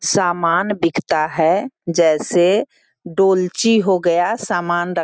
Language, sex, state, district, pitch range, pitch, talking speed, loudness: Hindi, female, Bihar, Sitamarhi, 170-205 Hz, 175 Hz, 120 wpm, -17 LUFS